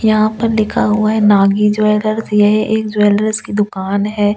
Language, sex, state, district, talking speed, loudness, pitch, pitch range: Hindi, female, Delhi, New Delhi, 235 wpm, -14 LUFS, 210 Hz, 205-215 Hz